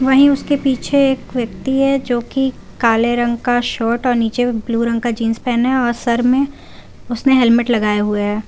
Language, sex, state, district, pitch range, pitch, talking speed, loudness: Hindi, female, Jharkhand, Garhwa, 230-265 Hz, 240 Hz, 190 wpm, -16 LUFS